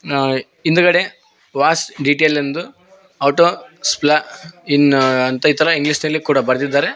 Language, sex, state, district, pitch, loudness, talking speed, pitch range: Kannada, male, Karnataka, Koppal, 150 Hz, -16 LUFS, 120 wpm, 140-165 Hz